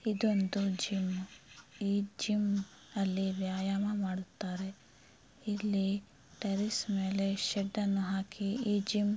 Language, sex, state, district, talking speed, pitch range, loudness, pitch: Kannada, female, Karnataka, Belgaum, 100 wpm, 190-205 Hz, -34 LUFS, 195 Hz